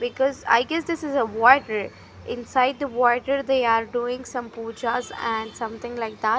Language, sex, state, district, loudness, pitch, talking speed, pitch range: English, female, Punjab, Fazilka, -23 LUFS, 240 Hz, 160 wpm, 230-265 Hz